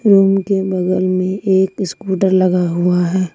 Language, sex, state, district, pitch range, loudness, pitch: Hindi, female, Jharkhand, Ranchi, 185-195 Hz, -15 LUFS, 185 Hz